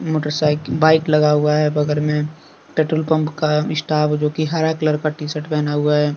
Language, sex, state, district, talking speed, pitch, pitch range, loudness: Hindi, male, Jharkhand, Deoghar, 215 wpm, 150 Hz, 150-155 Hz, -18 LUFS